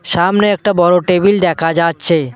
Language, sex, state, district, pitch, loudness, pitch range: Bengali, male, West Bengal, Cooch Behar, 175 Hz, -12 LUFS, 165-195 Hz